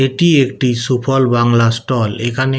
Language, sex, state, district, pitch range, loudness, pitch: Bengali, male, West Bengal, Kolkata, 120-135 Hz, -14 LUFS, 125 Hz